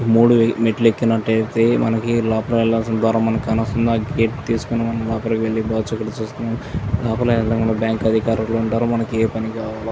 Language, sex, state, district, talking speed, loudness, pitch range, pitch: Telugu, male, Andhra Pradesh, Chittoor, 165 wpm, -19 LUFS, 110-115 Hz, 115 Hz